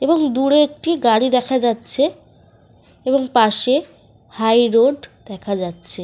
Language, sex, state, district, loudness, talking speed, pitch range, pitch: Bengali, female, Jharkhand, Sahebganj, -17 LUFS, 120 wpm, 225-280 Hz, 255 Hz